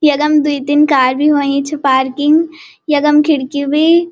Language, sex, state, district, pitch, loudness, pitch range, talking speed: Garhwali, female, Uttarakhand, Uttarkashi, 295 Hz, -13 LUFS, 280-305 Hz, 145 wpm